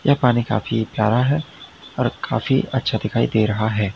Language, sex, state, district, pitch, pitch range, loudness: Hindi, male, Uttar Pradesh, Lalitpur, 110 Hz, 110-130 Hz, -20 LUFS